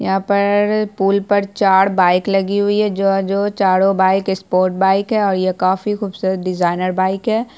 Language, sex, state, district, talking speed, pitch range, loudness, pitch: Hindi, female, Bihar, Purnia, 180 wpm, 190-205 Hz, -16 LUFS, 195 Hz